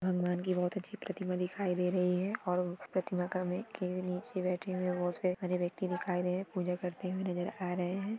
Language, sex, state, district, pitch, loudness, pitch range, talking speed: Hindi, female, Maharashtra, Aurangabad, 180 Hz, -35 LUFS, 180-185 Hz, 210 wpm